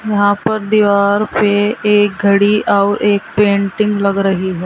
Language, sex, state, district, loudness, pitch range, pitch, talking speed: Hindi, female, Uttar Pradesh, Saharanpur, -13 LUFS, 200-210 Hz, 205 Hz, 155 wpm